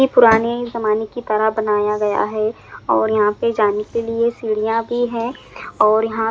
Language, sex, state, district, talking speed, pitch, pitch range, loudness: Hindi, male, Punjab, Fazilka, 180 wpm, 225 Hz, 215-235 Hz, -18 LUFS